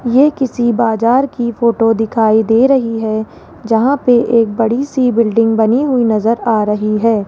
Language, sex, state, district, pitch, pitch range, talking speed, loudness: Hindi, female, Rajasthan, Jaipur, 230 Hz, 225-245 Hz, 175 wpm, -13 LUFS